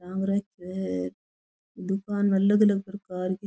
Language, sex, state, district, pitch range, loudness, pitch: Rajasthani, female, Rajasthan, Churu, 185-200 Hz, -27 LUFS, 195 Hz